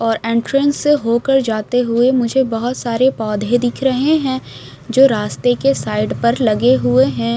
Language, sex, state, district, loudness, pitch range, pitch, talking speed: Hindi, female, Bihar, West Champaran, -15 LUFS, 220-260 Hz, 240 Hz, 170 wpm